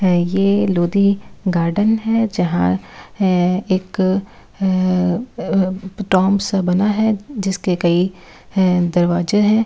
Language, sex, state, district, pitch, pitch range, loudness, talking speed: Hindi, female, Delhi, New Delhi, 190 Hz, 180-200 Hz, -17 LUFS, 120 wpm